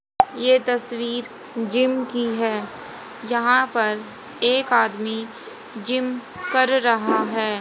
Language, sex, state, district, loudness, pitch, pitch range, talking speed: Hindi, female, Haryana, Jhajjar, -21 LUFS, 240 Hz, 225-255 Hz, 100 wpm